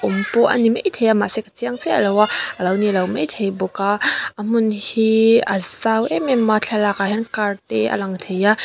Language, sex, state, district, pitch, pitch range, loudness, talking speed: Mizo, female, Mizoram, Aizawl, 210 Hz, 195-225 Hz, -18 LUFS, 240 wpm